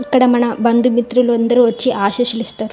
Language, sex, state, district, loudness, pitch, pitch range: Telugu, female, Andhra Pradesh, Visakhapatnam, -14 LUFS, 240 Hz, 235-245 Hz